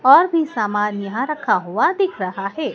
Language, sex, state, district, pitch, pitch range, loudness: Hindi, female, Madhya Pradesh, Dhar, 255 Hz, 200-335 Hz, -19 LUFS